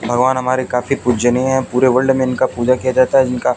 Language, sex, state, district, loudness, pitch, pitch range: Hindi, male, Haryana, Jhajjar, -15 LUFS, 130 Hz, 125-130 Hz